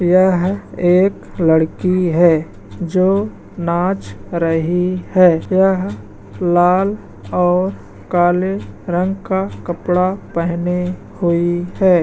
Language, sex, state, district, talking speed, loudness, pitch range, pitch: Hindi, male, Bihar, Madhepura, 90 wpm, -16 LUFS, 170-185 Hz, 180 Hz